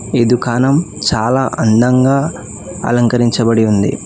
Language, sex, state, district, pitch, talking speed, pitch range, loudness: Telugu, male, Telangana, Hyderabad, 120 Hz, 90 wpm, 115-130 Hz, -13 LUFS